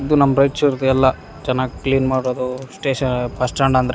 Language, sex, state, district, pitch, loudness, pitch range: Kannada, male, Karnataka, Raichur, 130 Hz, -18 LUFS, 130-135 Hz